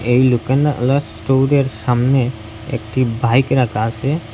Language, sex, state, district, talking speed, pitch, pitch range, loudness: Bengali, male, Assam, Hailakandi, 110 wpm, 130 Hz, 115-135 Hz, -17 LUFS